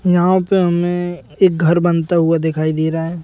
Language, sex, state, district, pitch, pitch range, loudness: Hindi, male, Madhya Pradesh, Bhopal, 170 Hz, 165-175 Hz, -16 LUFS